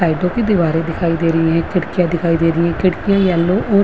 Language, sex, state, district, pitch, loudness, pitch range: Hindi, female, Uttarakhand, Uttarkashi, 170 Hz, -16 LUFS, 165-185 Hz